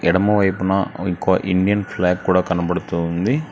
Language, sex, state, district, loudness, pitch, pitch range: Telugu, male, Telangana, Hyderabad, -19 LUFS, 95 Hz, 90-95 Hz